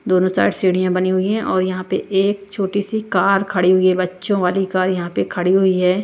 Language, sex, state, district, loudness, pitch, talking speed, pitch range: Hindi, female, Bihar, West Champaran, -18 LUFS, 185 Hz, 240 wpm, 185-195 Hz